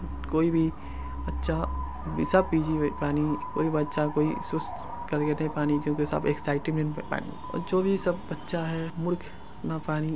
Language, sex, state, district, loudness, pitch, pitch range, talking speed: Maithili, male, Bihar, Samastipur, -29 LUFS, 150 Hz, 145-160 Hz, 40 wpm